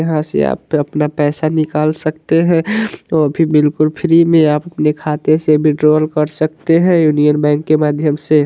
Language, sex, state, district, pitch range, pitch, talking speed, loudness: Hindi, male, Bihar, Vaishali, 150-160 Hz, 155 Hz, 185 wpm, -14 LUFS